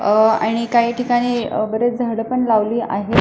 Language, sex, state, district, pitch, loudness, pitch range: Marathi, female, Maharashtra, Pune, 235 Hz, -18 LUFS, 220-240 Hz